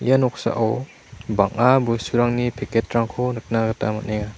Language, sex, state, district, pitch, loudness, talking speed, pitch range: Garo, male, Meghalaya, South Garo Hills, 115 Hz, -21 LUFS, 110 wpm, 110-125 Hz